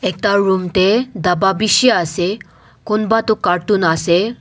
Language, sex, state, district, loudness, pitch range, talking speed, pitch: Nagamese, male, Nagaland, Dimapur, -15 LUFS, 180-215 Hz, 135 wpm, 195 Hz